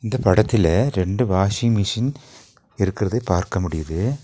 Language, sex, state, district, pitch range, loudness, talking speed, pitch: Tamil, male, Tamil Nadu, Nilgiris, 95-120 Hz, -20 LUFS, 115 wpm, 110 Hz